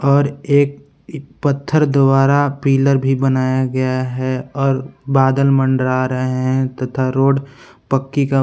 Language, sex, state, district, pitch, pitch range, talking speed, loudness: Hindi, male, Jharkhand, Palamu, 135 Hz, 130-140 Hz, 130 wpm, -16 LUFS